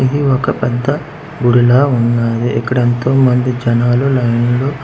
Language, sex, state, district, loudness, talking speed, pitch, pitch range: Telugu, male, Andhra Pradesh, Manyam, -13 LUFS, 135 wpm, 125 Hz, 120-135 Hz